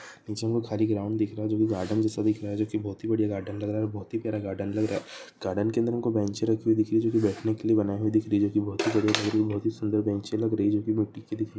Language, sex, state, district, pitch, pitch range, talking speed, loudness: Hindi, male, Andhra Pradesh, Anantapur, 110 Hz, 105-110 Hz, 265 wpm, -27 LUFS